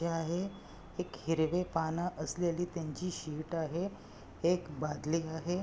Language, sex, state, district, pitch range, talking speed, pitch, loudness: Marathi, male, Maharashtra, Nagpur, 160-175 Hz, 130 wpm, 165 Hz, -36 LUFS